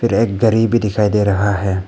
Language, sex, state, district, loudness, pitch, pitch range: Hindi, male, Arunachal Pradesh, Papum Pare, -15 LUFS, 105 Hz, 100-115 Hz